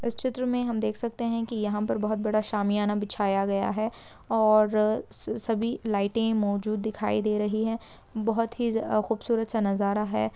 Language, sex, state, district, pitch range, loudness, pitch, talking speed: Hindi, female, Uttarakhand, Tehri Garhwal, 210-225 Hz, -27 LUFS, 215 Hz, 180 wpm